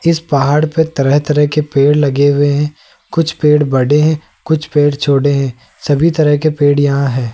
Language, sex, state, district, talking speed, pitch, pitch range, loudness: Hindi, male, Rajasthan, Jaipur, 195 wpm, 145 Hz, 140-155 Hz, -13 LUFS